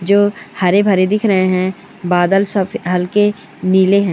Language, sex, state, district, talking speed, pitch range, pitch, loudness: Hindi, female, West Bengal, Purulia, 160 wpm, 185-205 Hz, 195 Hz, -15 LUFS